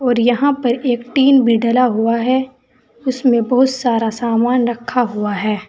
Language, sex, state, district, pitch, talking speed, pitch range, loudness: Hindi, female, Uttar Pradesh, Saharanpur, 245 Hz, 170 wpm, 230-255 Hz, -15 LUFS